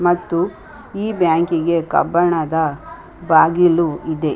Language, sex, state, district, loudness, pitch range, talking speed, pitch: Kannada, female, Karnataka, Chamarajanagar, -17 LUFS, 160-175 Hz, 85 wpm, 170 Hz